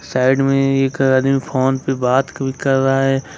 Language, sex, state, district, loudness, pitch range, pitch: Hindi, male, Jharkhand, Ranchi, -16 LUFS, 130-135 Hz, 135 Hz